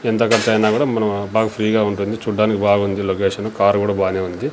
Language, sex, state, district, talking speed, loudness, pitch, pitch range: Telugu, male, Andhra Pradesh, Sri Satya Sai, 200 wpm, -18 LUFS, 105 Hz, 100-110 Hz